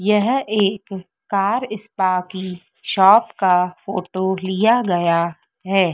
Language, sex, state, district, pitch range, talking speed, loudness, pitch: Hindi, female, Madhya Pradesh, Dhar, 185-210 Hz, 110 wpm, -19 LUFS, 190 Hz